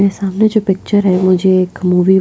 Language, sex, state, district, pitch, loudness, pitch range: Hindi, female, Goa, North and South Goa, 190 Hz, -13 LUFS, 185-200 Hz